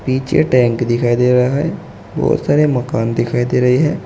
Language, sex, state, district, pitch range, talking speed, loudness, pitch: Hindi, male, Uttar Pradesh, Saharanpur, 120-140 Hz, 190 wpm, -15 LUFS, 125 Hz